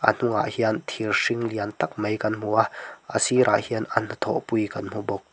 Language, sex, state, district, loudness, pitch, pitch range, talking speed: Mizo, male, Mizoram, Aizawl, -24 LUFS, 110 Hz, 105-115 Hz, 225 wpm